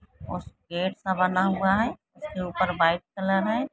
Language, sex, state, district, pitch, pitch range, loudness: Hindi, female, Karnataka, Mysore, 190 Hz, 180-195 Hz, -26 LUFS